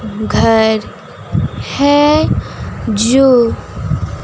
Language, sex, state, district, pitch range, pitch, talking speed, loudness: Hindi, female, Bihar, West Champaran, 220-280 Hz, 235 Hz, 40 wpm, -13 LUFS